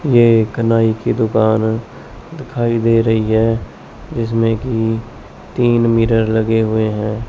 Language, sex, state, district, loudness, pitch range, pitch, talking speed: Hindi, male, Chandigarh, Chandigarh, -15 LUFS, 110-115 Hz, 115 Hz, 130 wpm